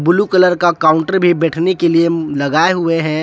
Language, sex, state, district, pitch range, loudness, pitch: Hindi, male, Jharkhand, Palamu, 160-175 Hz, -13 LUFS, 170 Hz